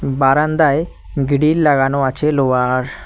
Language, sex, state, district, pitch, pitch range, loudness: Bengali, male, West Bengal, Cooch Behar, 140 Hz, 135-150 Hz, -15 LUFS